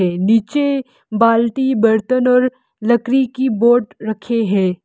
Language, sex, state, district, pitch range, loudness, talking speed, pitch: Hindi, female, Arunachal Pradesh, Lower Dibang Valley, 220-255 Hz, -16 LUFS, 110 wpm, 235 Hz